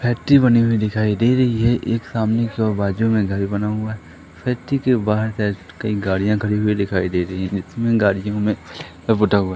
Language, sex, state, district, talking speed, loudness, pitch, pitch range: Hindi, male, Madhya Pradesh, Katni, 195 wpm, -19 LUFS, 105 Hz, 100-115 Hz